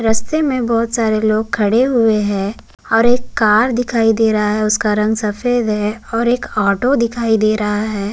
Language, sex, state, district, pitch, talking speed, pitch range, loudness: Hindi, male, Uttarakhand, Tehri Garhwal, 220 Hz, 190 wpm, 210-235 Hz, -15 LUFS